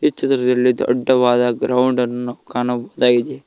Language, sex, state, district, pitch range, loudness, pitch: Kannada, male, Karnataka, Koppal, 120-125 Hz, -17 LUFS, 125 Hz